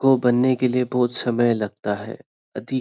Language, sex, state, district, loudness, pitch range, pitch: Hindi, male, Maharashtra, Nagpur, -21 LUFS, 115-125 Hz, 125 Hz